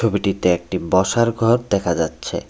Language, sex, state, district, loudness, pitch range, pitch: Bengali, male, Tripura, West Tripura, -19 LUFS, 90-115 Hz, 95 Hz